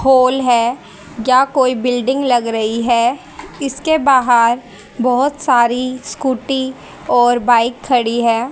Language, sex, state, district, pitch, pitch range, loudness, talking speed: Hindi, female, Haryana, Rohtak, 250 Hz, 235-260 Hz, -15 LUFS, 120 wpm